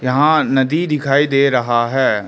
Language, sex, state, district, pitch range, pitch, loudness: Hindi, male, Arunachal Pradesh, Lower Dibang Valley, 125-150 Hz, 135 Hz, -15 LUFS